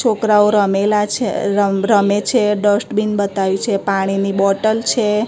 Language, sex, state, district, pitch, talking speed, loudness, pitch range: Gujarati, female, Gujarat, Gandhinagar, 205 Hz, 145 wpm, -16 LUFS, 195-215 Hz